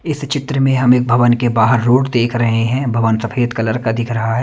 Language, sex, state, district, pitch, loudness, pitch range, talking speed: Hindi, male, Himachal Pradesh, Shimla, 120 Hz, -15 LUFS, 115-130 Hz, 255 wpm